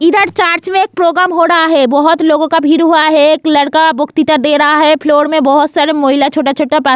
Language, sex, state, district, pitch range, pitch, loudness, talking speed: Hindi, female, Goa, North and South Goa, 295-330 Hz, 310 Hz, -10 LUFS, 250 wpm